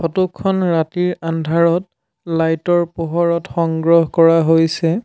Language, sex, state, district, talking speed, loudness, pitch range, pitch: Assamese, male, Assam, Sonitpur, 120 wpm, -16 LUFS, 165-175 Hz, 165 Hz